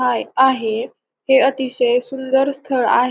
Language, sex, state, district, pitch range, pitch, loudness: Marathi, female, Maharashtra, Pune, 245-265 Hz, 260 Hz, -17 LUFS